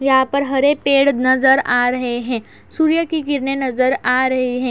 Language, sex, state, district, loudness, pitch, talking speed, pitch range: Hindi, female, Uttar Pradesh, Etah, -16 LUFS, 265 Hz, 190 wpm, 255-280 Hz